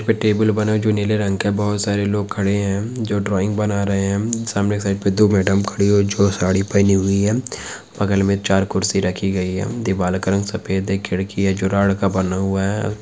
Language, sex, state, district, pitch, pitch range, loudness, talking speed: Hindi, male, Chhattisgarh, Korba, 100 Hz, 95-105 Hz, -19 LUFS, 245 wpm